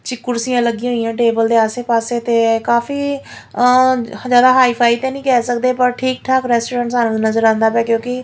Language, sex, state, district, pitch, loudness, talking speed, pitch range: Punjabi, female, Punjab, Fazilka, 240 Hz, -15 LUFS, 205 wpm, 230-255 Hz